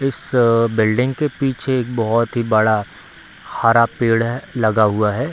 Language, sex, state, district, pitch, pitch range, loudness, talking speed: Hindi, male, Bihar, Darbhanga, 115 Hz, 110-130 Hz, -17 LUFS, 160 wpm